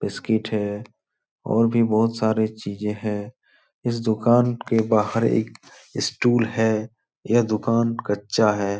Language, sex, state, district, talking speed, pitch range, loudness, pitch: Hindi, male, Bihar, Supaul, 130 wpm, 105-115 Hz, -22 LUFS, 110 Hz